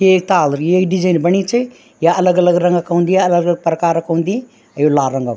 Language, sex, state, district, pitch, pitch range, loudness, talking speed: Garhwali, female, Uttarakhand, Tehri Garhwal, 175 Hz, 165-185 Hz, -14 LUFS, 235 wpm